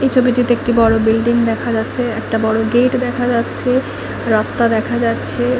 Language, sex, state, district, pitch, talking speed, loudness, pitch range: Bengali, female, West Bengal, Kolkata, 235 Hz, 140 wpm, -16 LUFS, 225-245 Hz